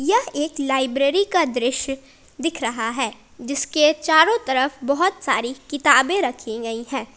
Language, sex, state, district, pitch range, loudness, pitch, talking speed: Hindi, female, Jharkhand, Palamu, 260-315 Hz, -20 LUFS, 275 Hz, 140 wpm